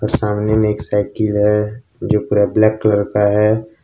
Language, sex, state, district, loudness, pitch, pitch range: Hindi, male, Jharkhand, Ranchi, -16 LUFS, 105 Hz, 105-110 Hz